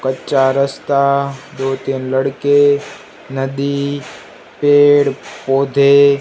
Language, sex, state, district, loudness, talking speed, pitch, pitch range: Hindi, male, Gujarat, Gandhinagar, -15 LUFS, 75 wpm, 140 Hz, 135-140 Hz